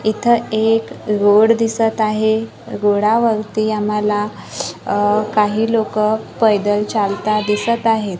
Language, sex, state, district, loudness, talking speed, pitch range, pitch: Marathi, female, Maharashtra, Gondia, -16 LUFS, 110 wpm, 210-225 Hz, 215 Hz